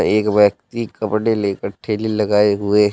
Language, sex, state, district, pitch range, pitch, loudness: Hindi, male, Uttar Pradesh, Saharanpur, 105-110 Hz, 105 Hz, -18 LUFS